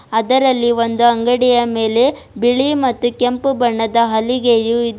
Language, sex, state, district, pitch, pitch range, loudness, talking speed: Kannada, female, Karnataka, Bidar, 240 Hz, 230-250 Hz, -15 LUFS, 120 wpm